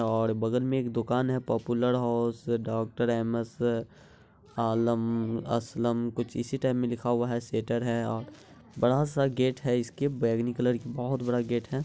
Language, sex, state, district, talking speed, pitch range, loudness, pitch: Hindi, male, Bihar, Araria, 170 wpm, 115-125 Hz, -29 LUFS, 120 Hz